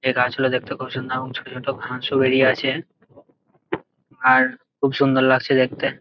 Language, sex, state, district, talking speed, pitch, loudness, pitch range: Bengali, male, West Bengal, Jalpaiguri, 170 wpm, 130 Hz, -20 LUFS, 130-135 Hz